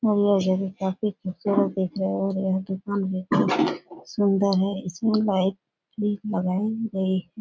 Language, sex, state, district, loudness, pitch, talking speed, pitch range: Hindi, female, Bihar, Supaul, -25 LUFS, 195 Hz, 160 wpm, 190-205 Hz